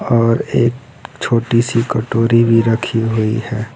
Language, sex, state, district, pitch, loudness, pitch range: Hindi, male, Bihar, East Champaran, 115 Hz, -15 LUFS, 115-120 Hz